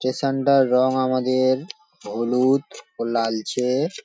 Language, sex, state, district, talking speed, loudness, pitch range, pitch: Bengali, male, West Bengal, Paschim Medinipur, 120 wpm, -21 LUFS, 125-135 Hz, 130 Hz